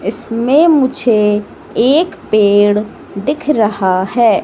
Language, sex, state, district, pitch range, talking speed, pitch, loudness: Hindi, female, Madhya Pradesh, Katni, 210-275 Hz, 95 wpm, 225 Hz, -13 LUFS